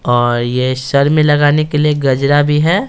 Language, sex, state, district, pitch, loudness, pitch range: Hindi, male, Bihar, Patna, 145 Hz, -13 LUFS, 130-150 Hz